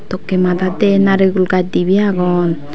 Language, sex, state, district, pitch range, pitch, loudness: Chakma, female, Tripura, Dhalai, 180-195 Hz, 185 Hz, -14 LUFS